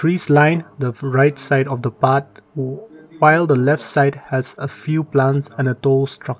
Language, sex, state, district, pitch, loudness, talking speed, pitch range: English, male, Nagaland, Kohima, 140 Hz, -18 LUFS, 190 wpm, 135-150 Hz